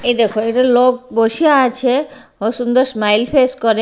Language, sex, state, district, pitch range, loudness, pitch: Bengali, female, Bihar, Katihar, 225-255 Hz, -14 LUFS, 250 Hz